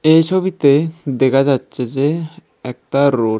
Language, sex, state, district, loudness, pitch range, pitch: Bengali, male, Tripura, West Tripura, -16 LUFS, 130-160 Hz, 140 Hz